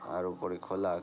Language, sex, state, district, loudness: Bengali, male, West Bengal, North 24 Parganas, -36 LUFS